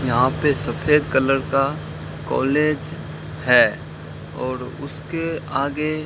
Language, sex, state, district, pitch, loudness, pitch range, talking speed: Hindi, male, Rajasthan, Bikaner, 145 Hz, -20 LUFS, 135-150 Hz, 110 wpm